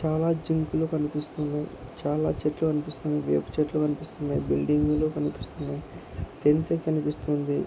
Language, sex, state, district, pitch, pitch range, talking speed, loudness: Telugu, male, Andhra Pradesh, Anantapur, 150 Hz, 145-155 Hz, 100 wpm, -27 LUFS